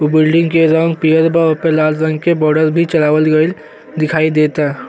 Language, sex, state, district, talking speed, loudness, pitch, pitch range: Bhojpuri, male, Uttar Pradesh, Gorakhpur, 195 wpm, -13 LUFS, 155 Hz, 155-165 Hz